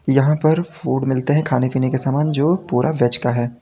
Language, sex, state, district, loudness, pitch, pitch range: Hindi, male, Uttar Pradesh, Lalitpur, -18 LUFS, 135 Hz, 130-155 Hz